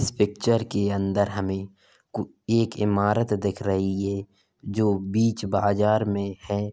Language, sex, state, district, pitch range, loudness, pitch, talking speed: Hindi, male, Uttar Pradesh, Jalaun, 100-105 Hz, -25 LUFS, 100 Hz, 145 wpm